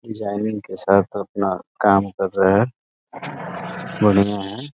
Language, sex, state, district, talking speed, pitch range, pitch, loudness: Hindi, male, Uttar Pradesh, Deoria, 125 wpm, 100-110 Hz, 100 Hz, -20 LUFS